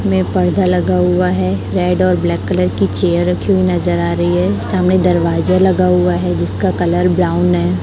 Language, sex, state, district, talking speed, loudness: Hindi, female, Chhattisgarh, Raipur, 200 wpm, -14 LUFS